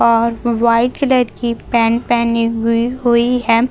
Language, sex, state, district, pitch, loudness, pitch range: Hindi, female, Chhattisgarh, Raipur, 235 Hz, -15 LUFS, 230-240 Hz